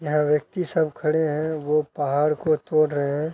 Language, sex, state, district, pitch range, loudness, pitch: Hindi, male, Bihar, Araria, 150-160 Hz, -23 LUFS, 150 Hz